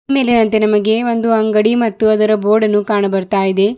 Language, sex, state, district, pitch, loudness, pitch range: Kannada, female, Karnataka, Bidar, 215 Hz, -13 LUFS, 210-225 Hz